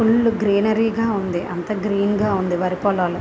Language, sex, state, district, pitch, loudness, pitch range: Telugu, female, Andhra Pradesh, Visakhapatnam, 200 Hz, -20 LUFS, 185-220 Hz